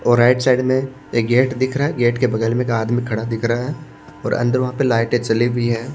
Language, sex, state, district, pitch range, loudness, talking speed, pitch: Hindi, male, Maharashtra, Washim, 115-130 Hz, -18 LUFS, 270 wpm, 120 Hz